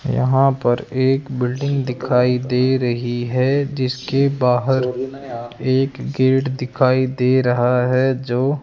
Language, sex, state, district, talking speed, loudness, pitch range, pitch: Hindi, male, Rajasthan, Jaipur, 125 wpm, -18 LUFS, 125-135 Hz, 130 Hz